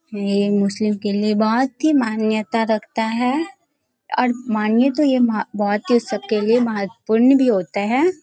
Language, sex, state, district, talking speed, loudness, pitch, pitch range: Hindi, female, Bihar, Bhagalpur, 170 wpm, -19 LUFS, 225 Hz, 210-255 Hz